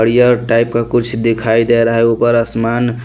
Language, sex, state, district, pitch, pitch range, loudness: Hindi, male, Punjab, Pathankot, 115 Hz, 115-120 Hz, -13 LUFS